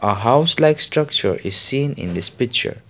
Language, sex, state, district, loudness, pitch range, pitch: English, male, Assam, Kamrup Metropolitan, -18 LUFS, 100-150 Hz, 130 Hz